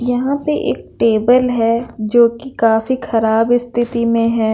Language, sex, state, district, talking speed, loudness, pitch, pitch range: Hindi, female, Bihar, Patna, 160 wpm, -15 LUFS, 235 Hz, 225-245 Hz